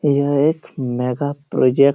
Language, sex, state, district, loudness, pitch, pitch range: Hindi, male, Jharkhand, Jamtara, -19 LUFS, 140 Hz, 130-145 Hz